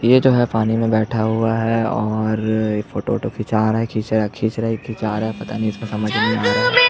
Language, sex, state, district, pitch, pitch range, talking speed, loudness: Hindi, male, Chhattisgarh, Jashpur, 110 Hz, 110-115 Hz, 245 wpm, -19 LUFS